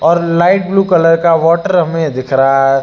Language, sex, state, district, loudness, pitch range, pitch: Hindi, male, Uttar Pradesh, Lucknow, -11 LUFS, 140-175 Hz, 165 Hz